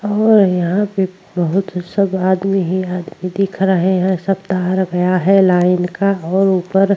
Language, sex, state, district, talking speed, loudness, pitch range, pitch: Hindi, female, Uttar Pradesh, Jyotiba Phule Nagar, 170 wpm, -16 LUFS, 180-195 Hz, 190 Hz